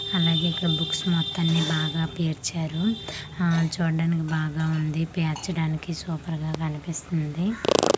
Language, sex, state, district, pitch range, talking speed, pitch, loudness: Telugu, female, Andhra Pradesh, Manyam, 155-170 Hz, 105 wpm, 165 Hz, -26 LUFS